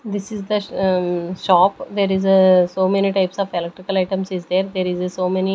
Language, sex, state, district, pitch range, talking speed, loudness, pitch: English, female, Maharashtra, Gondia, 185-195 Hz, 225 wpm, -19 LUFS, 190 Hz